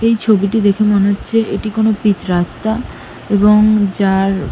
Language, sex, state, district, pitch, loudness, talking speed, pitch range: Bengali, female, West Bengal, North 24 Parganas, 205 Hz, -14 LUFS, 145 wpm, 200-220 Hz